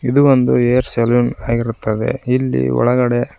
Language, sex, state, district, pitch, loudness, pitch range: Kannada, male, Karnataka, Koppal, 120 Hz, -16 LUFS, 115-125 Hz